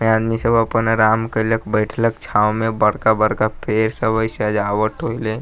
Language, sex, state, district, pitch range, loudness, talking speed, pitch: Maithili, male, Bihar, Sitamarhi, 110-115 Hz, -18 LUFS, 135 wpm, 110 Hz